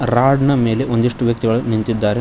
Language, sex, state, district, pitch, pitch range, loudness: Kannada, male, Karnataka, Koppal, 120 Hz, 115-125 Hz, -16 LUFS